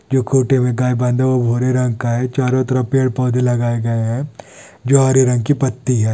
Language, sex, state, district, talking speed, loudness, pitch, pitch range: Hindi, male, Andhra Pradesh, Anantapur, 225 wpm, -16 LUFS, 125 Hz, 120-130 Hz